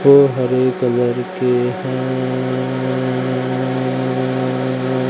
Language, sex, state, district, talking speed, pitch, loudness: Hindi, male, Madhya Pradesh, Katni, 60 wpm, 130 Hz, -18 LUFS